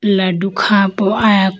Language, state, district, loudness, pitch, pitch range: Idu Mishmi, Arunachal Pradesh, Lower Dibang Valley, -14 LUFS, 195 Hz, 190-205 Hz